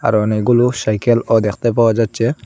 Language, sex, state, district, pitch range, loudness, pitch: Bengali, male, Assam, Hailakandi, 110-120 Hz, -15 LUFS, 115 Hz